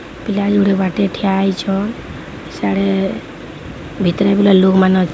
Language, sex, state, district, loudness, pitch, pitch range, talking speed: Odia, female, Odisha, Sambalpur, -15 LUFS, 195 Hz, 185-200 Hz, 105 wpm